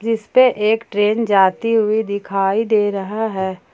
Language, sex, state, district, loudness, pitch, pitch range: Hindi, female, Jharkhand, Palamu, -17 LUFS, 210 Hz, 195-225 Hz